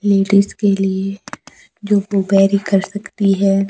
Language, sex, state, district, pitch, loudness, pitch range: Hindi, female, Himachal Pradesh, Shimla, 200 Hz, -16 LUFS, 195-205 Hz